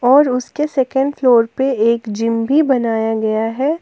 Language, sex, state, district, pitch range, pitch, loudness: Hindi, female, Jharkhand, Palamu, 230-275 Hz, 250 Hz, -16 LUFS